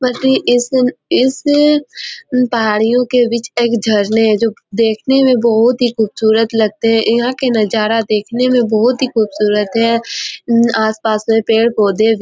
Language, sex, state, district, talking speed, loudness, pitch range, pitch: Hindi, female, Chhattisgarh, Korba, 165 wpm, -13 LUFS, 220-250 Hz, 230 Hz